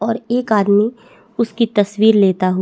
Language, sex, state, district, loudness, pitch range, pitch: Hindi, female, Chhattisgarh, Bastar, -15 LUFS, 200-230 Hz, 215 Hz